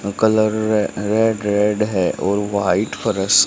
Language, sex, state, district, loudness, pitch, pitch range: Hindi, male, Haryana, Charkhi Dadri, -18 LUFS, 105 Hz, 100-110 Hz